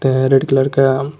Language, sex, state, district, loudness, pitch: Hindi, male, Jharkhand, Garhwa, -14 LUFS, 135 Hz